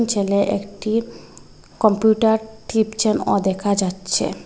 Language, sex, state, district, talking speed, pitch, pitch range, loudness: Bengali, female, Assam, Hailakandi, 95 wpm, 210 Hz, 200-220 Hz, -20 LUFS